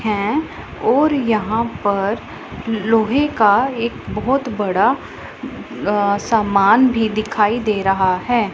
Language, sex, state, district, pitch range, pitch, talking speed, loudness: Hindi, female, Punjab, Pathankot, 205-235 Hz, 220 Hz, 110 wpm, -17 LUFS